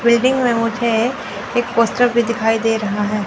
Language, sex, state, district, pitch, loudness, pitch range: Hindi, female, Chandigarh, Chandigarh, 235 Hz, -17 LUFS, 225-240 Hz